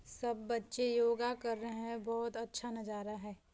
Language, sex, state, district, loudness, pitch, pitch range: Hindi, female, Chhattisgarh, Balrampur, -38 LUFS, 230 Hz, 225-235 Hz